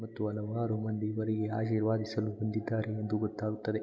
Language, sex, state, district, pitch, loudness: Kannada, male, Karnataka, Mysore, 110 Hz, -34 LUFS